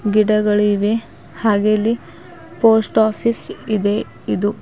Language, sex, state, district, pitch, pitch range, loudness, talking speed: Kannada, female, Karnataka, Bidar, 215 Hz, 210-220 Hz, -17 LUFS, 90 wpm